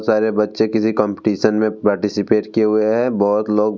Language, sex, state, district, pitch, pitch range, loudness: Hindi, male, Bihar, Vaishali, 110 Hz, 105-110 Hz, -17 LUFS